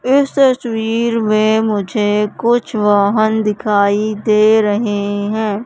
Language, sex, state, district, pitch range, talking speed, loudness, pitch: Hindi, female, Madhya Pradesh, Katni, 210-225 Hz, 105 wpm, -14 LUFS, 215 Hz